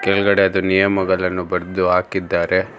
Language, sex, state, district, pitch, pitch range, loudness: Kannada, male, Karnataka, Bangalore, 95 Hz, 90-95 Hz, -18 LUFS